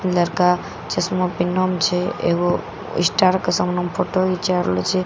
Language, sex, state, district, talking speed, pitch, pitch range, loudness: Maithili, female, Bihar, Katihar, 180 wpm, 180 Hz, 175-185 Hz, -20 LUFS